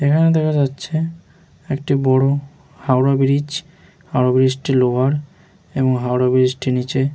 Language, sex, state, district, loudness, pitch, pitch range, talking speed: Bengali, male, West Bengal, Jhargram, -18 LUFS, 135 Hz, 130-150 Hz, 150 wpm